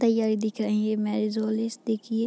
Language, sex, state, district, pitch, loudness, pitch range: Hindi, female, Bihar, Muzaffarpur, 220 Hz, -27 LUFS, 215-225 Hz